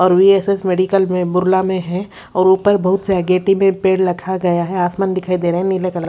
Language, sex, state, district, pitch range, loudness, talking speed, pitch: Hindi, female, Odisha, Sambalpur, 180-190 Hz, -16 LUFS, 235 wpm, 185 Hz